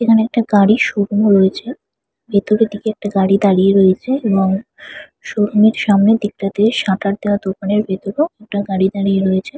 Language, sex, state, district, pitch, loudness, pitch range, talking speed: Bengali, female, West Bengal, Purulia, 205 Hz, -15 LUFS, 195-220 Hz, 145 wpm